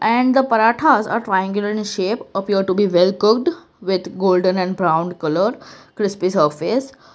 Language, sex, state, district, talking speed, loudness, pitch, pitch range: English, female, Gujarat, Valsad, 160 wpm, -18 LUFS, 195 Hz, 185-225 Hz